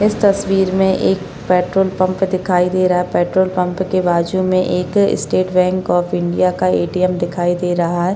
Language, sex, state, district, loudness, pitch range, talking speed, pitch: Hindi, female, Maharashtra, Chandrapur, -16 LUFS, 180-185 Hz, 205 wpm, 185 Hz